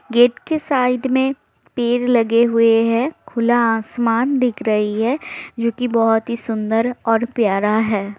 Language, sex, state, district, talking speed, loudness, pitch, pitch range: Hindi, female, Bihar, Jahanabad, 155 wpm, -18 LUFS, 235 Hz, 225-250 Hz